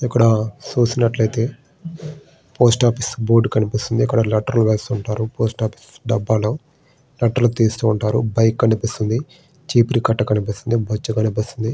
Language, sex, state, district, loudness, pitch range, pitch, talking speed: Telugu, male, Andhra Pradesh, Srikakulam, -19 LUFS, 110-125 Hz, 115 Hz, 105 wpm